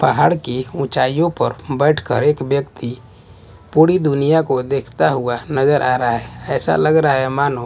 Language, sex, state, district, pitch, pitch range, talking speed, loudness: Hindi, male, Bihar, West Champaran, 135 Hz, 125-150 Hz, 165 wpm, -17 LUFS